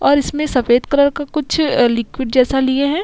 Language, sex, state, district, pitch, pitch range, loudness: Hindi, female, Bihar, Vaishali, 275 Hz, 255-285 Hz, -16 LUFS